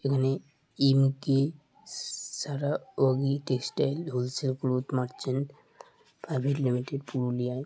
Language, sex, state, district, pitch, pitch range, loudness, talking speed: Bengali, male, West Bengal, Purulia, 135 Hz, 130-140 Hz, -29 LUFS, 95 wpm